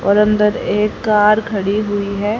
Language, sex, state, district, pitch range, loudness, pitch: Hindi, female, Haryana, Rohtak, 205-210 Hz, -15 LUFS, 210 Hz